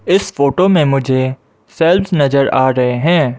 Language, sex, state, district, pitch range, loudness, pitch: Hindi, male, Arunachal Pradesh, Lower Dibang Valley, 130-170 Hz, -13 LUFS, 140 Hz